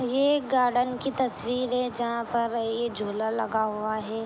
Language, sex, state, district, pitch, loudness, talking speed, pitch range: Hindi, female, Jharkhand, Jamtara, 235 Hz, -27 LUFS, 155 wpm, 220-250 Hz